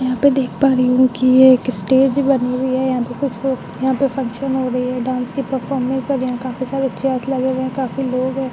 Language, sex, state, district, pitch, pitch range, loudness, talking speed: Hindi, female, Bihar, Vaishali, 260 Hz, 255-270 Hz, -17 LUFS, 275 wpm